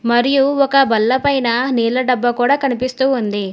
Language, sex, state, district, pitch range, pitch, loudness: Telugu, female, Telangana, Hyderabad, 240-270 Hz, 255 Hz, -15 LUFS